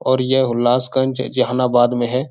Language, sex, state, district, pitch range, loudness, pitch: Hindi, male, Bihar, Jahanabad, 120-130 Hz, -17 LUFS, 130 Hz